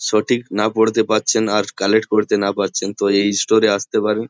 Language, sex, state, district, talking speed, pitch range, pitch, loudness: Bengali, male, West Bengal, Jhargram, 225 wpm, 100-110 Hz, 105 Hz, -17 LUFS